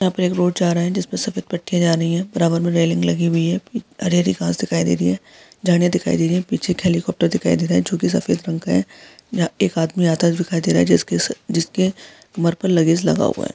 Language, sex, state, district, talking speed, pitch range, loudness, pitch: Hindi, female, Jharkhand, Sahebganj, 255 wpm, 160-180 Hz, -19 LUFS, 170 Hz